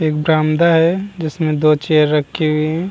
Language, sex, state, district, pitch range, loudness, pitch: Hindi, male, Bihar, Vaishali, 155-165 Hz, -15 LUFS, 155 Hz